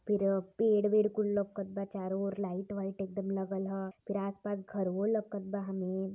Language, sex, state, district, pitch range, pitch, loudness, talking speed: Hindi, male, Uttar Pradesh, Varanasi, 195-205 Hz, 195 Hz, -34 LUFS, 195 wpm